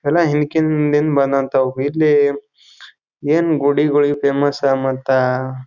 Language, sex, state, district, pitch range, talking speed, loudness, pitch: Kannada, male, Karnataka, Bijapur, 135-150 Hz, 105 wpm, -16 LUFS, 145 Hz